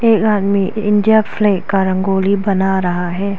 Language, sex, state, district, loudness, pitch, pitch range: Hindi, female, Arunachal Pradesh, Lower Dibang Valley, -15 LUFS, 200 Hz, 190-210 Hz